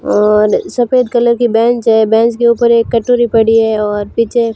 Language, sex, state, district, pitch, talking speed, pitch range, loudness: Hindi, female, Rajasthan, Barmer, 230 Hz, 195 wpm, 225-240 Hz, -11 LUFS